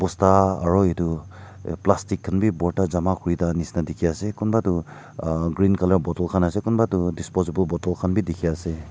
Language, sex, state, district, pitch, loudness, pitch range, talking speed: Nagamese, male, Nagaland, Kohima, 90 Hz, -23 LUFS, 85-95 Hz, 190 wpm